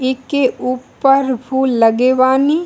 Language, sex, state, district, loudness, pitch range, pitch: Bhojpuri, female, Bihar, East Champaran, -14 LUFS, 255-270 Hz, 260 Hz